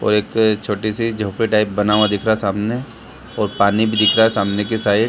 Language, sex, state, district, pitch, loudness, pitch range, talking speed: Hindi, male, Bihar, Saran, 105 Hz, -17 LUFS, 105-110 Hz, 260 wpm